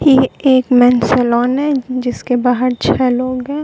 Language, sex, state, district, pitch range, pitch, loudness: Hindi, female, Bihar, Katihar, 245-260 Hz, 255 Hz, -14 LUFS